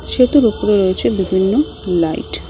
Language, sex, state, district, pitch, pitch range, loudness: Bengali, female, West Bengal, Cooch Behar, 200 Hz, 185-245 Hz, -15 LUFS